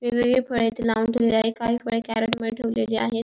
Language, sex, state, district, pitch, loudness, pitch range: Marathi, female, Maharashtra, Pune, 230 Hz, -23 LUFS, 225-235 Hz